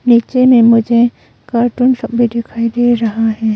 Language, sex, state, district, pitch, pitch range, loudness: Hindi, female, Arunachal Pradesh, Longding, 235 Hz, 230-240 Hz, -12 LUFS